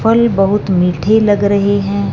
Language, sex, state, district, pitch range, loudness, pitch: Hindi, male, Punjab, Fazilka, 180-210 Hz, -13 LUFS, 200 Hz